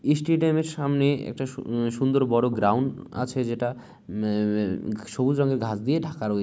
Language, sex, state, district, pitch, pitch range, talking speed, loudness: Bengali, male, West Bengal, Malda, 125 Hz, 110-140 Hz, 185 wpm, -25 LUFS